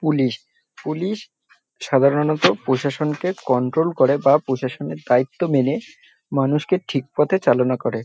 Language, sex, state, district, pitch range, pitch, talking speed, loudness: Bengali, male, West Bengal, North 24 Parganas, 130-160 Hz, 140 Hz, 110 wpm, -20 LUFS